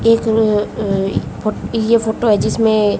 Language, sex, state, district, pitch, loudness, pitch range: Hindi, female, Haryana, Jhajjar, 220 Hz, -16 LUFS, 210-225 Hz